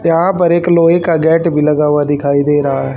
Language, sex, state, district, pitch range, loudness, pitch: Hindi, female, Haryana, Charkhi Dadri, 145-170 Hz, -12 LUFS, 160 Hz